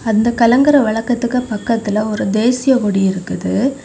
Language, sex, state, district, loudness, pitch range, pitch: Tamil, female, Tamil Nadu, Kanyakumari, -15 LUFS, 215-250 Hz, 230 Hz